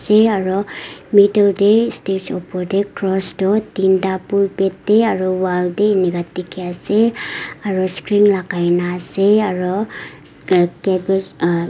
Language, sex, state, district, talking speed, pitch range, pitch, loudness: Nagamese, female, Nagaland, Kohima, 145 wpm, 180-205 Hz, 190 Hz, -17 LUFS